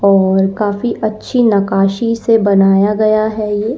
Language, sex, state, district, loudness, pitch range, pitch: Hindi, female, Uttar Pradesh, Lalitpur, -13 LUFS, 195-220 Hz, 210 Hz